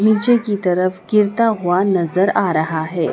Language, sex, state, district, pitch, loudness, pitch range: Hindi, female, Madhya Pradesh, Dhar, 190 Hz, -17 LUFS, 180-210 Hz